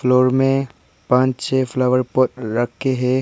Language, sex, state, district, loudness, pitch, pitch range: Hindi, male, Arunachal Pradesh, Papum Pare, -18 LUFS, 130 Hz, 125-130 Hz